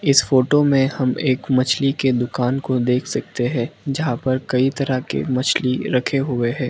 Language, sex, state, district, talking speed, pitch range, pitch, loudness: Hindi, male, Arunachal Pradesh, Lower Dibang Valley, 190 wpm, 125-135 Hz, 130 Hz, -19 LUFS